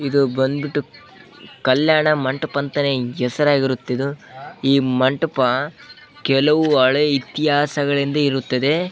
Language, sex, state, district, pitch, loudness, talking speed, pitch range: Kannada, male, Karnataka, Bellary, 140 Hz, -19 LUFS, 80 wpm, 130-150 Hz